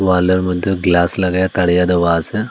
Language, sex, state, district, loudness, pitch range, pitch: Bengali, male, Assam, Hailakandi, -15 LUFS, 90-95 Hz, 90 Hz